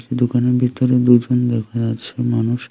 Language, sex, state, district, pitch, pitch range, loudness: Bengali, male, Tripura, Unakoti, 120 Hz, 120-125 Hz, -17 LUFS